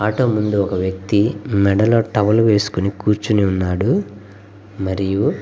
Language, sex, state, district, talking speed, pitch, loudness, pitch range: Telugu, male, Andhra Pradesh, Guntur, 120 wpm, 105 Hz, -17 LUFS, 100-110 Hz